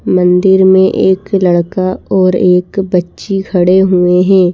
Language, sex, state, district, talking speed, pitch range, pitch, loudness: Hindi, female, Madhya Pradesh, Bhopal, 130 wpm, 180-190 Hz, 185 Hz, -10 LUFS